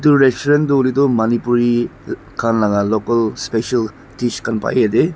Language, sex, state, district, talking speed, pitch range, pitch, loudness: Nagamese, male, Nagaland, Dimapur, 150 wpm, 115-130 Hz, 120 Hz, -17 LUFS